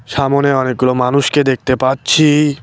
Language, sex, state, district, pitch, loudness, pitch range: Bengali, male, West Bengal, Cooch Behar, 135 Hz, -13 LUFS, 130-140 Hz